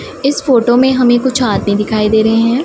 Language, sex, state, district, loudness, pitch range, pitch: Hindi, female, Punjab, Pathankot, -12 LUFS, 220-260 Hz, 240 Hz